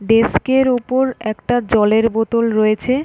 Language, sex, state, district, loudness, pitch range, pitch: Bengali, female, West Bengal, North 24 Parganas, -16 LUFS, 215-255 Hz, 230 Hz